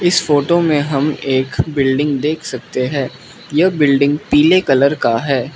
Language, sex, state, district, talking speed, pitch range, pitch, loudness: Hindi, male, Mizoram, Aizawl, 160 wpm, 135-155 Hz, 145 Hz, -15 LUFS